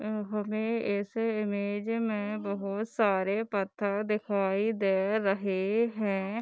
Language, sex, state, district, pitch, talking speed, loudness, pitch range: Hindi, female, Bihar, Darbhanga, 205 Hz, 105 wpm, -30 LUFS, 200-215 Hz